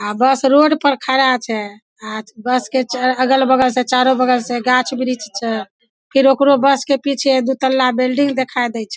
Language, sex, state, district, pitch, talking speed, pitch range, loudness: Maithili, female, Bihar, Samastipur, 255 Hz, 185 wpm, 240-265 Hz, -15 LUFS